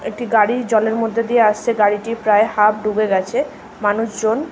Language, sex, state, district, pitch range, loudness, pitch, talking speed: Bengali, female, West Bengal, Malda, 210-230 Hz, -17 LUFS, 220 Hz, 160 wpm